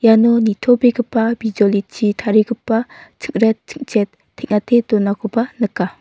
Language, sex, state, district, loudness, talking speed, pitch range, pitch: Garo, female, Meghalaya, North Garo Hills, -17 LUFS, 90 wpm, 210-235 Hz, 220 Hz